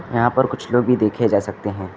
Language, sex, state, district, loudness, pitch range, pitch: Hindi, male, Uttar Pradesh, Lucknow, -19 LUFS, 105-125 Hz, 115 Hz